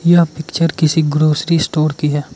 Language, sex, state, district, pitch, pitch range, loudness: Hindi, male, Arunachal Pradesh, Lower Dibang Valley, 155 Hz, 150-165 Hz, -15 LUFS